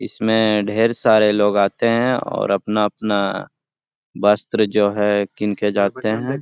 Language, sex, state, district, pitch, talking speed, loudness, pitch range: Hindi, male, Bihar, Lakhisarai, 105 Hz, 140 wpm, -18 LUFS, 105-110 Hz